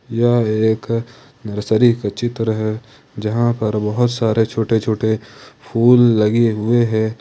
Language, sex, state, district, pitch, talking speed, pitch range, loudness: Hindi, male, Jharkhand, Ranchi, 115 Hz, 135 wpm, 110-120 Hz, -17 LUFS